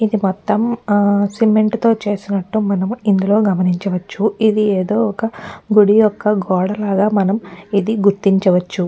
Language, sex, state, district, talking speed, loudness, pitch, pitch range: Telugu, female, Telangana, Nalgonda, 110 wpm, -16 LUFS, 205 Hz, 195-215 Hz